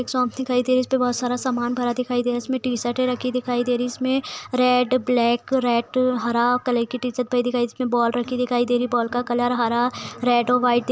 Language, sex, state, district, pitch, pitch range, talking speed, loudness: Hindi, female, Bihar, Purnia, 245 Hz, 240-250 Hz, 265 wpm, -22 LUFS